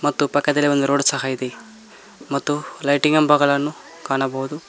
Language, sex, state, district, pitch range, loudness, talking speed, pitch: Kannada, male, Karnataka, Koppal, 140-150 Hz, -19 LUFS, 115 wpm, 145 Hz